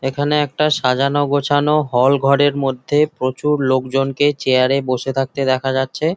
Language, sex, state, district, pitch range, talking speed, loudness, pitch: Bengali, male, West Bengal, Jhargram, 130-145 Hz, 135 wpm, -17 LUFS, 135 Hz